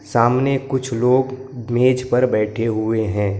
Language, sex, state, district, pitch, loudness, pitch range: Hindi, male, Maharashtra, Gondia, 120 Hz, -19 LUFS, 110-130 Hz